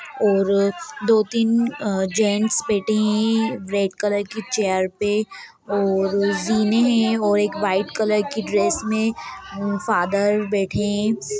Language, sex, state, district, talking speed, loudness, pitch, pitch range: Hindi, female, Bihar, Sitamarhi, 130 wpm, -21 LUFS, 210 Hz, 200-225 Hz